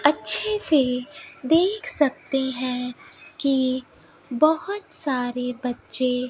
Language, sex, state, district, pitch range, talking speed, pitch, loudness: Hindi, female, Rajasthan, Bikaner, 250-320 Hz, 95 wpm, 270 Hz, -23 LUFS